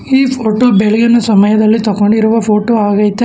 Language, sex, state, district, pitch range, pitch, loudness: Kannada, male, Karnataka, Bangalore, 210-235 Hz, 220 Hz, -10 LUFS